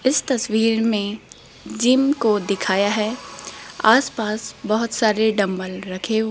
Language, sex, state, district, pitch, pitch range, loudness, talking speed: Hindi, female, Rajasthan, Jaipur, 220 Hz, 205-230 Hz, -20 LUFS, 145 wpm